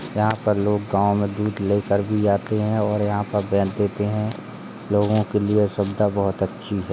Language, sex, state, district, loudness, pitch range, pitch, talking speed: Hindi, male, Uttar Pradesh, Jalaun, -22 LUFS, 100-105 Hz, 105 Hz, 210 wpm